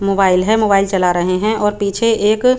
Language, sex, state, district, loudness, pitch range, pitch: Hindi, female, Chandigarh, Chandigarh, -14 LUFS, 190-220 Hz, 200 Hz